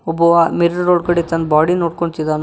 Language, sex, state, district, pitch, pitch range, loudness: Kannada, male, Karnataka, Koppal, 170 Hz, 165-170 Hz, -15 LUFS